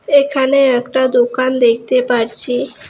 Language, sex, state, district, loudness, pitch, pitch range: Bengali, female, West Bengal, Alipurduar, -14 LUFS, 255 Hz, 245-265 Hz